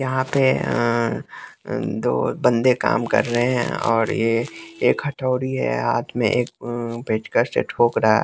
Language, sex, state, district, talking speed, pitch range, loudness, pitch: Hindi, male, Bihar, West Champaran, 160 wpm, 115-130 Hz, -21 LUFS, 120 Hz